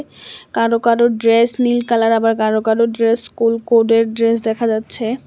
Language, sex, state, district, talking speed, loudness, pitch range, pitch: Bengali, female, Tripura, West Tripura, 160 wpm, -15 LUFS, 225-230 Hz, 230 Hz